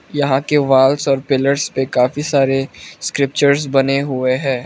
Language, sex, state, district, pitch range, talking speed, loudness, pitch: Hindi, male, Arunachal Pradesh, Lower Dibang Valley, 130-140 Hz, 140 wpm, -16 LUFS, 135 Hz